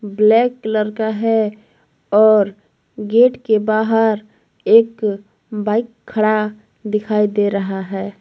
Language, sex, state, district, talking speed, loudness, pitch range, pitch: Hindi, female, Jharkhand, Palamu, 110 wpm, -17 LUFS, 205-220 Hz, 215 Hz